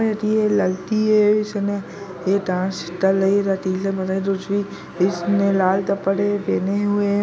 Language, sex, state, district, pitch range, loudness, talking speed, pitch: Hindi, female, Bihar, Darbhanga, 190-205 Hz, -20 LUFS, 110 wpm, 200 Hz